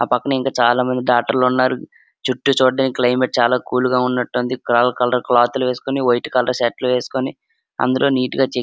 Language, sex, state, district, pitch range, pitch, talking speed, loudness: Telugu, male, Andhra Pradesh, Srikakulam, 125-130 Hz, 125 Hz, 210 wpm, -18 LUFS